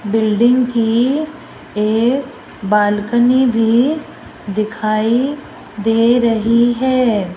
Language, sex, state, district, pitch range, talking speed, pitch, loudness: Hindi, female, Rajasthan, Jaipur, 215-255 Hz, 75 wpm, 230 Hz, -15 LUFS